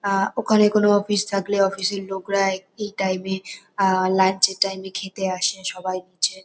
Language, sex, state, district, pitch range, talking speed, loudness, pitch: Bengali, female, West Bengal, North 24 Parganas, 190-200 Hz, 175 wpm, -22 LUFS, 195 Hz